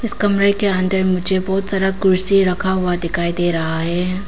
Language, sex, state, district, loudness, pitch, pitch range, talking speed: Hindi, female, Arunachal Pradesh, Papum Pare, -16 LUFS, 185 Hz, 175-195 Hz, 180 wpm